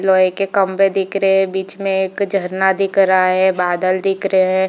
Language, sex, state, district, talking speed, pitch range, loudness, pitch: Hindi, female, Chhattisgarh, Bilaspur, 215 wpm, 185-195 Hz, -16 LUFS, 190 Hz